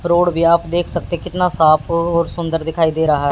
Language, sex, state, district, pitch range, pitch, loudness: Hindi, female, Haryana, Jhajjar, 160-175 Hz, 170 Hz, -16 LUFS